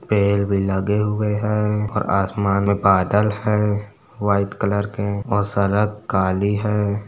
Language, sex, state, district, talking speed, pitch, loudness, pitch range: Hindi, male, Uttar Pradesh, Etah, 145 wpm, 100 Hz, -20 LUFS, 100-105 Hz